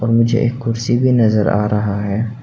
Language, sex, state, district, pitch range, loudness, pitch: Hindi, male, Arunachal Pradesh, Papum Pare, 105-115 Hz, -16 LUFS, 115 Hz